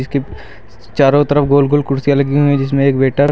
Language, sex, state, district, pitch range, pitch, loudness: Hindi, male, Uttar Pradesh, Lucknow, 130-145 Hz, 140 Hz, -13 LUFS